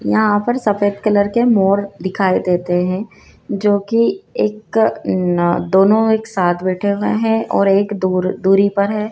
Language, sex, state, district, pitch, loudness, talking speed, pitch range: Hindi, female, Madhya Pradesh, Dhar, 200 Hz, -16 LUFS, 165 wpm, 190-215 Hz